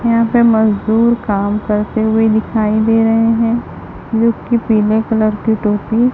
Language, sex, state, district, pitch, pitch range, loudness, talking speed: Hindi, female, Chhattisgarh, Raipur, 220 Hz, 215-230 Hz, -14 LUFS, 145 wpm